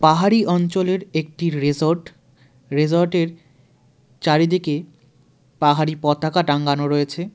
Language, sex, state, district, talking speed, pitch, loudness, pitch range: Bengali, male, West Bengal, Darjeeling, 90 wpm, 155 Hz, -19 LUFS, 140-170 Hz